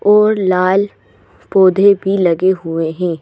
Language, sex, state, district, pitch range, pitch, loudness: Hindi, female, Madhya Pradesh, Bhopal, 165-195 Hz, 185 Hz, -13 LUFS